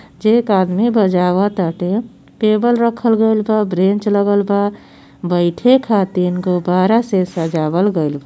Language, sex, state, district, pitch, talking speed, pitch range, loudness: Bhojpuri, female, Uttar Pradesh, Gorakhpur, 200 Hz, 130 wpm, 180-220 Hz, -15 LUFS